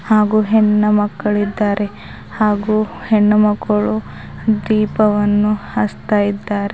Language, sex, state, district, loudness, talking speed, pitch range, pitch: Kannada, female, Karnataka, Bidar, -16 LUFS, 80 wpm, 205-215 Hz, 210 Hz